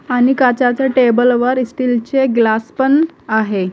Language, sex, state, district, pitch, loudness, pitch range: Marathi, female, Maharashtra, Gondia, 250 Hz, -14 LUFS, 235-265 Hz